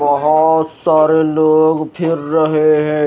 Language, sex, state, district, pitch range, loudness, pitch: Hindi, male, Himachal Pradesh, Shimla, 155-160 Hz, -13 LUFS, 155 Hz